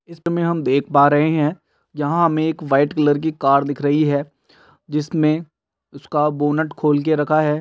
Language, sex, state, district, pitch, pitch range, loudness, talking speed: Hindi, male, Uttar Pradesh, Etah, 150 Hz, 145-160 Hz, -18 LUFS, 175 wpm